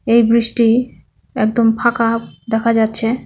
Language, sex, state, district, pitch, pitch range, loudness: Bengali, female, West Bengal, Cooch Behar, 230 Hz, 225-235 Hz, -15 LUFS